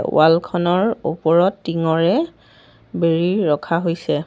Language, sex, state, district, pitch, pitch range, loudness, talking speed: Assamese, female, Assam, Sonitpur, 170 Hz, 160-180 Hz, -18 LUFS, 100 wpm